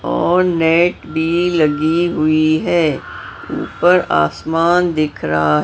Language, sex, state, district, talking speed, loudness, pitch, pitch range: Hindi, male, Maharashtra, Mumbai Suburban, 105 wpm, -15 LUFS, 160 Hz, 155-175 Hz